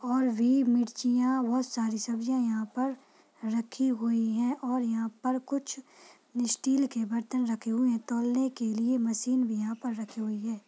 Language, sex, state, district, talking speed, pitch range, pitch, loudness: Hindi, female, Maharashtra, Solapur, 180 wpm, 225-255 Hz, 240 Hz, -30 LUFS